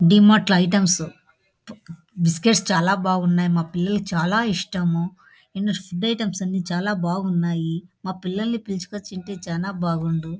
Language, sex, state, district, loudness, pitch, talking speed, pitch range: Telugu, female, Andhra Pradesh, Anantapur, -21 LUFS, 185 Hz, 110 wpm, 170-200 Hz